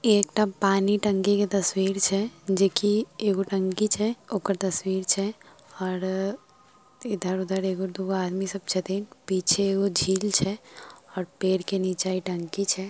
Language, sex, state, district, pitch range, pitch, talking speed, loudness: Maithili, female, Bihar, Samastipur, 190-205 Hz, 195 Hz, 145 wpm, -26 LUFS